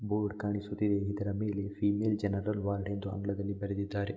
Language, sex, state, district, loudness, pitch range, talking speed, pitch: Kannada, male, Karnataka, Mysore, -34 LUFS, 100-105 Hz, 145 wpm, 100 Hz